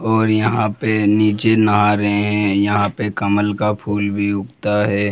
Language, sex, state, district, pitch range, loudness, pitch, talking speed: Hindi, male, Bihar, Jamui, 100-105 Hz, -17 LUFS, 105 Hz, 175 wpm